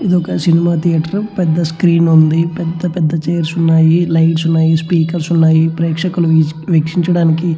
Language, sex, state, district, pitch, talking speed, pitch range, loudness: Telugu, male, Andhra Pradesh, Chittoor, 165 Hz, 150 wpm, 160-170 Hz, -13 LUFS